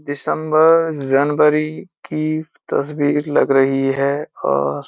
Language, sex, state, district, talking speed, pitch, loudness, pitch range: Hindi, male, Uttarakhand, Uttarkashi, 110 wpm, 145 Hz, -17 LUFS, 135-155 Hz